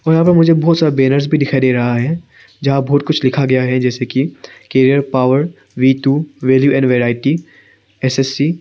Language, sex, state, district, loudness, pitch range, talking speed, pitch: Hindi, male, Arunachal Pradesh, Papum Pare, -14 LUFS, 130-155 Hz, 195 wpm, 135 Hz